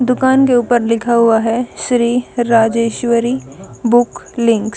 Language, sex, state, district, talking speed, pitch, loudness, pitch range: Hindi, female, Punjab, Kapurthala, 140 wpm, 235 Hz, -14 LUFS, 230-245 Hz